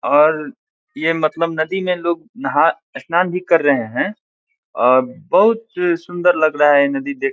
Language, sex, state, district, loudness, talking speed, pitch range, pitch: Hindi, male, Bihar, Saran, -17 LUFS, 180 wpm, 150-180 Hz, 165 Hz